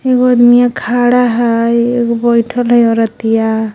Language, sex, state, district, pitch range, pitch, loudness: Magahi, female, Jharkhand, Palamu, 230-245 Hz, 235 Hz, -11 LUFS